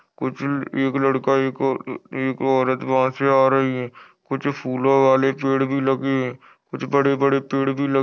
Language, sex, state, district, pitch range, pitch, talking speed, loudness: Hindi, male, Maharashtra, Aurangabad, 130-135 Hz, 135 Hz, 180 wpm, -20 LUFS